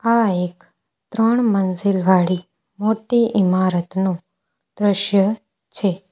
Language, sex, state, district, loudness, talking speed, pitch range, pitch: Gujarati, female, Gujarat, Valsad, -19 LUFS, 90 wpm, 185-215 Hz, 195 Hz